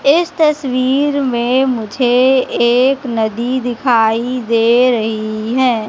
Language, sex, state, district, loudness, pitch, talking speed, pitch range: Hindi, female, Madhya Pradesh, Katni, -14 LUFS, 250 Hz, 100 wpm, 230-260 Hz